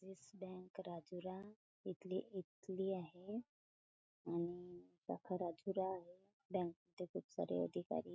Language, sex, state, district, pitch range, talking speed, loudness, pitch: Marathi, female, Maharashtra, Chandrapur, 170-190 Hz, 105 wpm, -47 LUFS, 185 Hz